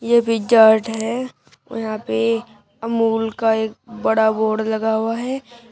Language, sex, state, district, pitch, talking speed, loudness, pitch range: Hindi, female, Uttar Pradesh, Shamli, 225 Hz, 155 wpm, -19 LUFS, 220-230 Hz